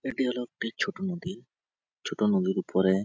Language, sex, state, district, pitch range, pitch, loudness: Bengali, male, West Bengal, Jhargram, 120-190 Hz, 170 Hz, -29 LUFS